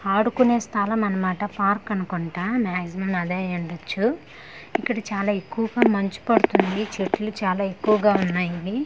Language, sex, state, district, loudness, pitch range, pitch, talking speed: Telugu, female, Andhra Pradesh, Manyam, -23 LUFS, 185-220 Hz, 200 Hz, 115 wpm